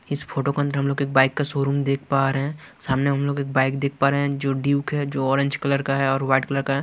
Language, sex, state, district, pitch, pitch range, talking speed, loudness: Hindi, male, Chhattisgarh, Raipur, 140 Hz, 135-140 Hz, 315 wpm, -22 LUFS